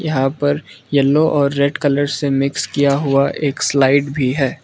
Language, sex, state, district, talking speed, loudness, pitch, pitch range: Hindi, male, Arunachal Pradesh, Lower Dibang Valley, 180 wpm, -16 LUFS, 140 Hz, 135-145 Hz